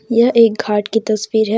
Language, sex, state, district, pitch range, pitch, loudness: Hindi, female, Jharkhand, Deoghar, 215-230 Hz, 220 Hz, -15 LUFS